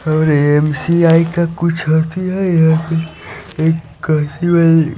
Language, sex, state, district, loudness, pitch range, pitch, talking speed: Hindi, male, Odisha, Khordha, -14 LUFS, 155-170 Hz, 160 Hz, 95 wpm